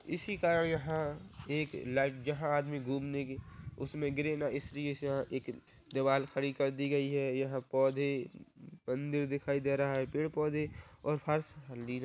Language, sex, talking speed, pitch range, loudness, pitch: Hindi, male, 160 wpm, 135-150 Hz, -35 LUFS, 140 Hz